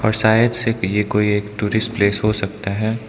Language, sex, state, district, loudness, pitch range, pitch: Hindi, male, Arunachal Pradesh, Lower Dibang Valley, -18 LUFS, 105-110 Hz, 105 Hz